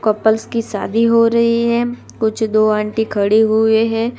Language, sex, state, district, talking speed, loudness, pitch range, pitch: Hindi, female, Gujarat, Gandhinagar, 170 wpm, -15 LUFS, 215-230 Hz, 220 Hz